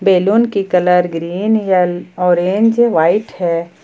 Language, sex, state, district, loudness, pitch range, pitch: Hindi, female, Jharkhand, Ranchi, -14 LUFS, 175-205 Hz, 180 Hz